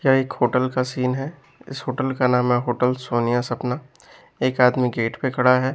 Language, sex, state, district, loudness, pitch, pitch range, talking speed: Hindi, male, Bihar, West Champaran, -21 LUFS, 125 Hz, 125-130 Hz, 200 wpm